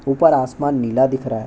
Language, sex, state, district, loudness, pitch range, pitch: Hindi, male, Chhattisgarh, Bastar, -17 LUFS, 125-145 Hz, 130 Hz